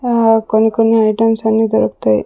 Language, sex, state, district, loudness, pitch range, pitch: Telugu, female, Andhra Pradesh, Sri Satya Sai, -13 LUFS, 215-225 Hz, 225 Hz